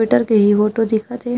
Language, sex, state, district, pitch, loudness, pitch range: Chhattisgarhi, female, Chhattisgarh, Raigarh, 220 Hz, -16 LUFS, 210-235 Hz